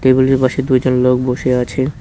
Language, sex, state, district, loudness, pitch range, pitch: Bengali, male, West Bengal, Cooch Behar, -14 LUFS, 125-130 Hz, 130 Hz